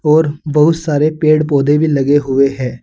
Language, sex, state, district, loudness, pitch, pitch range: Hindi, male, Uttar Pradesh, Saharanpur, -13 LUFS, 150 Hz, 140-155 Hz